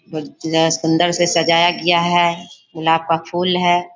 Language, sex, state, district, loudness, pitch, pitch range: Hindi, female, Bihar, Bhagalpur, -16 LUFS, 170 Hz, 165-175 Hz